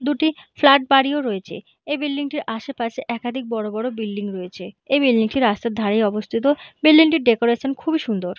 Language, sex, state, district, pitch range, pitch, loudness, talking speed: Bengali, female, West Bengal, Purulia, 220-285 Hz, 245 Hz, -20 LUFS, 200 wpm